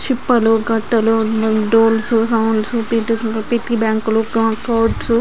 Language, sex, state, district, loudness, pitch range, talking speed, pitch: Telugu, female, Andhra Pradesh, Srikakulam, -16 LUFS, 220-230 Hz, 80 wpm, 225 Hz